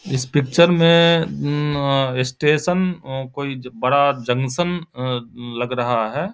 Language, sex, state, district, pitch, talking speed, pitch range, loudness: Maithili, male, Bihar, Samastipur, 140 Hz, 115 wpm, 125-165 Hz, -19 LUFS